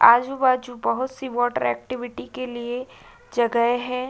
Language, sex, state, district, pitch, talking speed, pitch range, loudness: Hindi, female, Uttar Pradesh, Budaun, 245 Hz, 130 wpm, 240-255 Hz, -23 LUFS